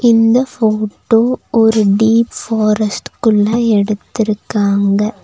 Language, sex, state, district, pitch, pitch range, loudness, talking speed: Tamil, female, Tamil Nadu, Nilgiris, 220 Hz, 210-230 Hz, -14 LUFS, 80 wpm